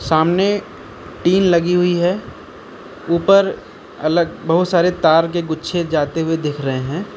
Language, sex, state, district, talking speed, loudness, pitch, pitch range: Hindi, male, Uttar Pradesh, Lucknow, 140 wpm, -17 LUFS, 170 Hz, 160-180 Hz